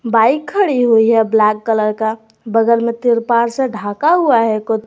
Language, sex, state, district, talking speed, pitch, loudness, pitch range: Hindi, female, Jharkhand, Garhwa, 185 wpm, 225 Hz, -14 LUFS, 220-240 Hz